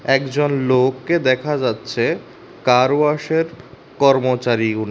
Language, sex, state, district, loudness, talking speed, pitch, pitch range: Bengali, male, Tripura, West Tripura, -18 LUFS, 100 wpm, 135 Hz, 125-150 Hz